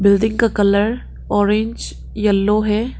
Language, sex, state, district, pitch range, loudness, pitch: Hindi, female, Arunachal Pradesh, Papum Pare, 205-220 Hz, -17 LUFS, 210 Hz